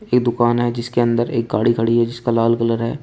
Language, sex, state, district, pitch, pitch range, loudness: Hindi, male, Uttar Pradesh, Shamli, 120 Hz, 115-120 Hz, -18 LUFS